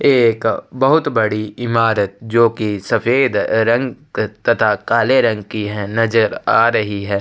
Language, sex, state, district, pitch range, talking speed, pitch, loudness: Hindi, male, Chhattisgarh, Sukma, 105-115 Hz, 140 wpm, 110 Hz, -16 LUFS